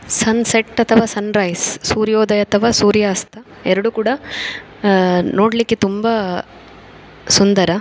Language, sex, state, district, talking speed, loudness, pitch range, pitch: Kannada, female, Karnataka, Dakshina Kannada, 115 wpm, -16 LUFS, 200-225 Hz, 210 Hz